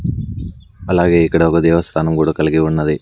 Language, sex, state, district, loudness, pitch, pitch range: Telugu, male, Andhra Pradesh, Sri Satya Sai, -15 LUFS, 80 Hz, 80-85 Hz